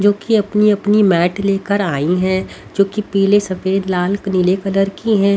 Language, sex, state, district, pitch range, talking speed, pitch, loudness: Hindi, female, Haryana, Rohtak, 190-205 Hz, 180 wpm, 195 Hz, -16 LUFS